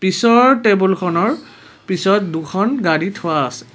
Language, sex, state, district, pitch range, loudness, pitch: Assamese, male, Assam, Kamrup Metropolitan, 165-210 Hz, -16 LUFS, 190 Hz